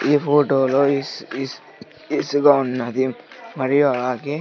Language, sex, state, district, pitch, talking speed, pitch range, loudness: Telugu, male, Andhra Pradesh, Sri Satya Sai, 140 Hz, 135 wpm, 130-145 Hz, -19 LUFS